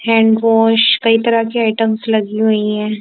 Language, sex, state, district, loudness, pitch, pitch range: Hindi, female, Punjab, Kapurthala, -13 LUFS, 225 Hz, 220-230 Hz